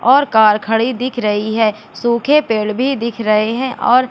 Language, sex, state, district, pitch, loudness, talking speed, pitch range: Hindi, female, Madhya Pradesh, Katni, 230 Hz, -15 LUFS, 190 wpm, 215-255 Hz